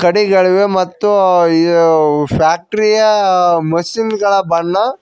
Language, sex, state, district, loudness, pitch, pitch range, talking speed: Kannada, male, Karnataka, Koppal, -12 LUFS, 185 Hz, 170-205 Hz, 95 wpm